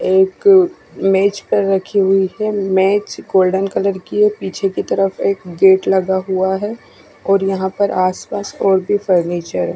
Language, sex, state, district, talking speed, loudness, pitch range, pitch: Hindi, female, Odisha, Khordha, 170 wpm, -16 LUFS, 190-200 Hz, 195 Hz